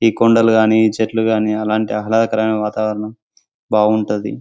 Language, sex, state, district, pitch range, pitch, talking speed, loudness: Telugu, male, Telangana, Karimnagar, 105-110 Hz, 110 Hz, 135 wpm, -16 LUFS